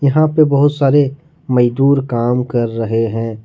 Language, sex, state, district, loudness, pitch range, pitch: Hindi, male, Jharkhand, Ranchi, -14 LUFS, 120-145 Hz, 135 Hz